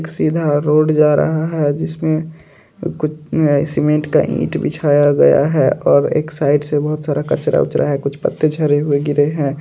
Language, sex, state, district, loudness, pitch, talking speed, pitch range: Hindi, male, Bihar, Araria, -15 LUFS, 150 Hz, 180 wpm, 145-155 Hz